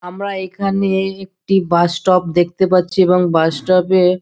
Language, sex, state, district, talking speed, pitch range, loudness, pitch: Bengali, male, West Bengal, Dakshin Dinajpur, 170 wpm, 175-195 Hz, -15 LUFS, 185 Hz